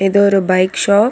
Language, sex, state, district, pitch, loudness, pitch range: Tamil, female, Tamil Nadu, Nilgiris, 200 Hz, -13 LUFS, 185-200 Hz